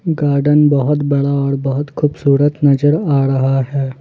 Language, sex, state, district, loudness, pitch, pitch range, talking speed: Hindi, male, Jharkhand, Ranchi, -14 LUFS, 140 Hz, 140-150 Hz, 150 wpm